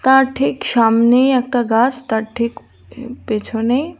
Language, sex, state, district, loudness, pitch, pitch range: Bengali, female, Tripura, West Tripura, -16 LUFS, 245 Hz, 225-260 Hz